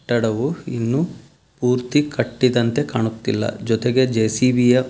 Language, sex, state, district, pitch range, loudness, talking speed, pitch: Kannada, male, Karnataka, Dharwad, 115-130 Hz, -20 LUFS, 110 wpm, 125 Hz